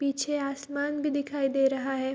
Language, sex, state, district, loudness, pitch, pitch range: Hindi, female, Bihar, Darbhanga, -29 LUFS, 280 Hz, 270-285 Hz